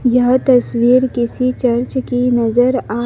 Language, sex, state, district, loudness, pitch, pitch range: Hindi, female, Madhya Pradesh, Dhar, -14 LUFS, 250 Hz, 240-255 Hz